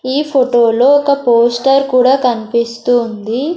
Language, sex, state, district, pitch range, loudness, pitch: Telugu, female, Andhra Pradesh, Sri Satya Sai, 235-270 Hz, -12 LUFS, 250 Hz